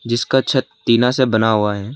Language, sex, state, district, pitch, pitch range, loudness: Hindi, male, Arunachal Pradesh, Lower Dibang Valley, 120 Hz, 110-130 Hz, -16 LUFS